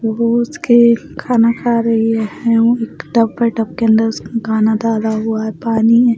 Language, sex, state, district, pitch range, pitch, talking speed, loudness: Hindi, female, Bihar, West Champaran, 225-235 Hz, 230 Hz, 185 wpm, -14 LUFS